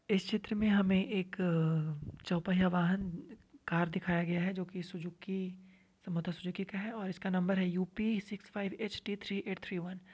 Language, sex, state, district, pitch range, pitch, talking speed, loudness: Hindi, female, Uttar Pradesh, Varanasi, 175-200 Hz, 185 Hz, 185 wpm, -35 LUFS